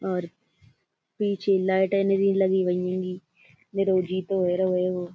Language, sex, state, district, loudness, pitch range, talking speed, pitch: Hindi, female, Uttar Pradesh, Budaun, -25 LUFS, 180-195 Hz, 80 wpm, 185 Hz